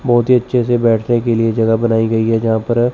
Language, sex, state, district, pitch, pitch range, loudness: Hindi, male, Chandigarh, Chandigarh, 115 Hz, 115-120 Hz, -14 LUFS